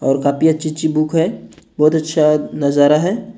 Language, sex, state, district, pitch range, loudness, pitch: Hindi, male, Maharashtra, Gondia, 150-160 Hz, -15 LUFS, 155 Hz